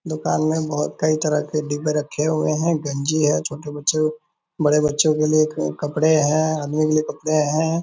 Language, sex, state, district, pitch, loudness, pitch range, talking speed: Hindi, male, Bihar, Purnia, 155 Hz, -20 LUFS, 150-155 Hz, 200 wpm